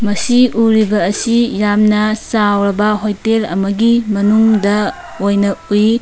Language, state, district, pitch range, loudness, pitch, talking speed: Manipuri, Manipur, Imphal West, 205-225 Hz, -13 LUFS, 210 Hz, 100 wpm